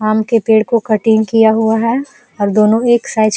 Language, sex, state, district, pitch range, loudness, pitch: Hindi, female, Uttar Pradesh, Jalaun, 215-230 Hz, -13 LUFS, 220 Hz